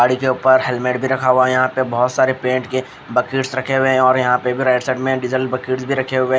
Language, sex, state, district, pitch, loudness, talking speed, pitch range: Hindi, female, Odisha, Khordha, 130 Hz, -17 LUFS, 290 wpm, 125-130 Hz